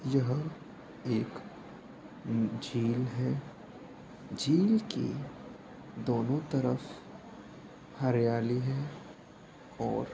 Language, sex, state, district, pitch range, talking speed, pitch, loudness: Hindi, male, Uttar Pradesh, Etah, 115-145 Hz, 70 wpm, 125 Hz, -32 LUFS